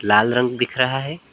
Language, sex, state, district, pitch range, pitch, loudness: Hindi, male, West Bengal, Alipurduar, 120-135 Hz, 125 Hz, -19 LUFS